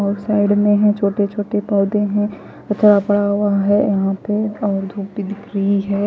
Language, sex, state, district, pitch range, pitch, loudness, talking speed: Hindi, female, Chandigarh, Chandigarh, 200-205 Hz, 205 Hz, -17 LUFS, 205 wpm